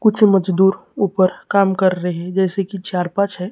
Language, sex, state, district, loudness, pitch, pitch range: Hindi, male, Maharashtra, Gondia, -17 LUFS, 190 Hz, 185-200 Hz